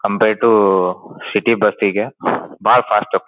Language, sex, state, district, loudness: Kannada, male, Karnataka, Dharwad, -16 LUFS